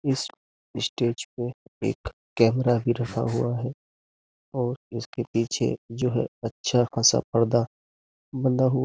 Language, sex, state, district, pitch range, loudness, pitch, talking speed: Hindi, male, Uttar Pradesh, Jyotiba Phule Nagar, 115-125 Hz, -26 LUFS, 120 Hz, 135 wpm